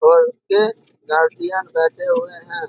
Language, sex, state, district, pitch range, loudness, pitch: Hindi, male, Bihar, Darbhanga, 170-260 Hz, -18 LUFS, 190 Hz